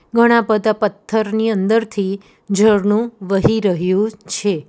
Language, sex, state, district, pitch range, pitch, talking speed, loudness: Gujarati, female, Gujarat, Valsad, 195-220 Hz, 210 Hz, 100 wpm, -17 LUFS